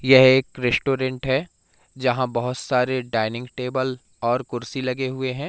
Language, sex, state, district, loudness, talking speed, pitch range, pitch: Hindi, male, Madhya Pradesh, Umaria, -22 LUFS, 155 wpm, 125-130 Hz, 130 Hz